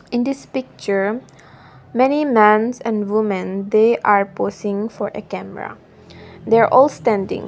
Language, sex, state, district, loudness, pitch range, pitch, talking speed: English, female, Nagaland, Dimapur, -18 LUFS, 205-240 Hz, 215 Hz, 130 wpm